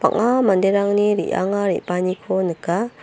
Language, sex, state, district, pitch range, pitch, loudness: Garo, female, Meghalaya, North Garo Hills, 185-210 Hz, 195 Hz, -19 LUFS